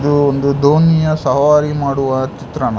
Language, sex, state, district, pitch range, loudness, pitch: Kannada, male, Karnataka, Dakshina Kannada, 135-150 Hz, -14 LUFS, 140 Hz